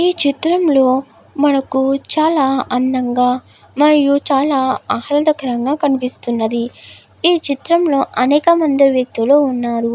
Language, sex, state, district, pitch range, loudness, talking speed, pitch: Telugu, female, Andhra Pradesh, Guntur, 255-295 Hz, -15 LUFS, 110 wpm, 275 Hz